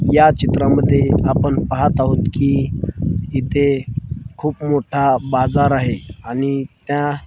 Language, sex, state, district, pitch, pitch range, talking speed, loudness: Marathi, male, Maharashtra, Washim, 140 Hz, 130-145 Hz, 115 wpm, -17 LUFS